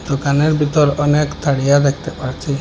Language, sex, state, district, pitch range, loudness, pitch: Bengali, male, Assam, Hailakandi, 140-150 Hz, -16 LUFS, 145 Hz